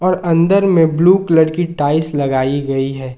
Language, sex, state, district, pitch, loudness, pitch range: Hindi, male, Jharkhand, Ranchi, 160 Hz, -14 LUFS, 140-175 Hz